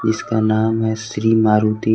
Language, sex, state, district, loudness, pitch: Hindi, male, Jharkhand, Garhwa, -17 LUFS, 110 Hz